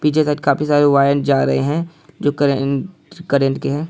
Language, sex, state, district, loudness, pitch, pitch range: Hindi, male, Bihar, Saharsa, -17 LUFS, 145 Hz, 140-155 Hz